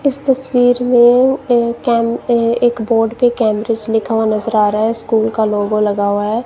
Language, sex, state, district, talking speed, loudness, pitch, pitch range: Hindi, female, Punjab, Kapurthala, 205 wpm, -14 LUFS, 230 Hz, 220-245 Hz